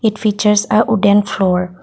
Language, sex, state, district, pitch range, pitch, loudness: English, female, Assam, Kamrup Metropolitan, 200-215 Hz, 210 Hz, -14 LUFS